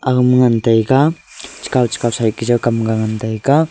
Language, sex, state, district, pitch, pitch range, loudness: Wancho, male, Arunachal Pradesh, Longding, 120 Hz, 115-130 Hz, -15 LUFS